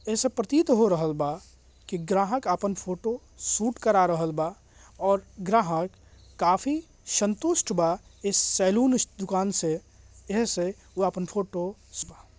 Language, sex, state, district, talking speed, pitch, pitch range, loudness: Bhojpuri, male, Bihar, Gopalganj, 140 wpm, 195 Hz, 175-225 Hz, -26 LUFS